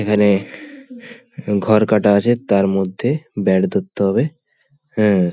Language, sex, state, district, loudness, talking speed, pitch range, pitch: Bengali, male, West Bengal, Paschim Medinipur, -17 LUFS, 110 wpm, 100-150 Hz, 105 Hz